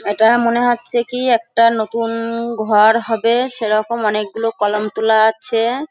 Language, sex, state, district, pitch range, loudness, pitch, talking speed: Bengali, female, West Bengal, Jhargram, 220-235 Hz, -16 LUFS, 230 Hz, 130 wpm